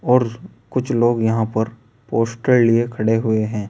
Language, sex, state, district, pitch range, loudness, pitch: Hindi, male, Uttar Pradesh, Saharanpur, 110-120 Hz, -19 LUFS, 115 Hz